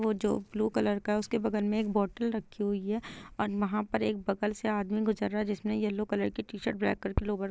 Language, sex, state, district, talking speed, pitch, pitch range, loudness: Hindi, female, Bihar, Gopalganj, 265 wpm, 210 Hz, 205-215 Hz, -32 LUFS